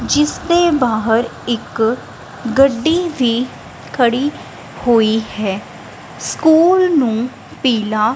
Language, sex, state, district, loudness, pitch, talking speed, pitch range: Punjabi, female, Punjab, Kapurthala, -16 LUFS, 245 Hz, 90 wpm, 225-295 Hz